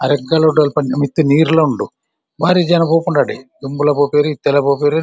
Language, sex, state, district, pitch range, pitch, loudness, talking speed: Tulu, male, Karnataka, Dakshina Kannada, 145-160 Hz, 150 Hz, -14 LUFS, 145 wpm